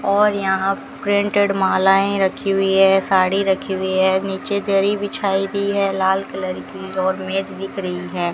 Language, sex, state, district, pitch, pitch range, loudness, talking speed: Hindi, female, Rajasthan, Bikaner, 195 Hz, 190-200 Hz, -19 LUFS, 170 wpm